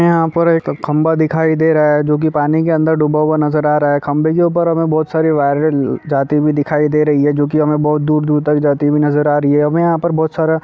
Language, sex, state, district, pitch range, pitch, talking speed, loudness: Hindi, male, Chhattisgarh, Bastar, 150-160 Hz, 150 Hz, 270 wpm, -14 LUFS